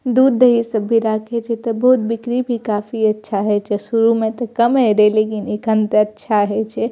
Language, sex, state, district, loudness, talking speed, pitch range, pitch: Maithili, female, Bihar, Purnia, -17 LUFS, 235 wpm, 215-235 Hz, 225 Hz